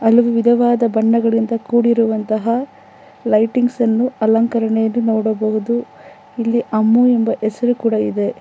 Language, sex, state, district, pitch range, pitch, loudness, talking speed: Kannada, female, Karnataka, Bangalore, 220-235 Hz, 230 Hz, -16 LUFS, 85 wpm